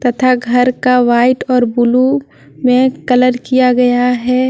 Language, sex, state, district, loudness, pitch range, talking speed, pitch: Hindi, female, Jharkhand, Deoghar, -12 LUFS, 240-255 Hz, 145 wpm, 250 Hz